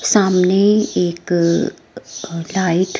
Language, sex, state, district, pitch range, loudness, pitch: Hindi, female, Himachal Pradesh, Shimla, 175-205 Hz, -16 LUFS, 185 Hz